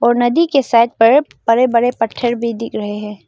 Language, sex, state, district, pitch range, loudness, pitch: Hindi, female, Arunachal Pradesh, Lower Dibang Valley, 225-245 Hz, -15 LUFS, 235 Hz